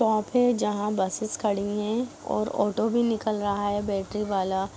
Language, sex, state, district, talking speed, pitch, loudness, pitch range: Hindi, female, Bihar, Sitamarhi, 175 wpm, 210 Hz, -26 LUFS, 205-220 Hz